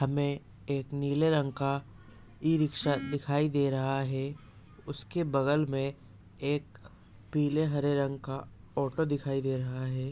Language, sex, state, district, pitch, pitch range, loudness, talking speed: Hindi, male, Uttar Pradesh, Ghazipur, 140 Hz, 130-145 Hz, -31 LUFS, 135 wpm